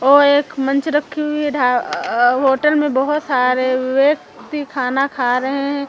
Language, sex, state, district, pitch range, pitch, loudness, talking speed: Hindi, female, Chhattisgarh, Raipur, 255-295 Hz, 275 Hz, -17 LUFS, 185 wpm